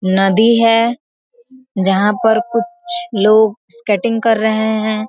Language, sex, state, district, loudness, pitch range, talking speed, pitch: Hindi, female, Bihar, Gopalganj, -14 LUFS, 210-235 Hz, 120 wpm, 225 Hz